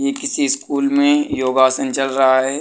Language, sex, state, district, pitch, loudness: Hindi, male, Uttar Pradesh, Budaun, 140 Hz, -16 LUFS